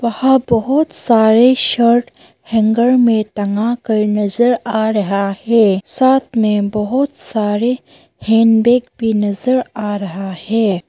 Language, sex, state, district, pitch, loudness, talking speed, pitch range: Hindi, female, Arunachal Pradesh, Papum Pare, 225 Hz, -14 LUFS, 120 wpm, 210-245 Hz